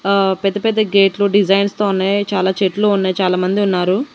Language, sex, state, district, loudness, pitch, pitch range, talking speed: Telugu, female, Andhra Pradesh, Annamaya, -15 LUFS, 195 Hz, 190-205 Hz, 175 wpm